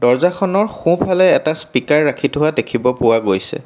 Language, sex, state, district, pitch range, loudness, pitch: Assamese, male, Assam, Kamrup Metropolitan, 125-175 Hz, -15 LUFS, 150 Hz